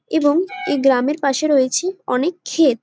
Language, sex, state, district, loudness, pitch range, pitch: Bengali, female, West Bengal, Jalpaiguri, -18 LUFS, 275-350 Hz, 295 Hz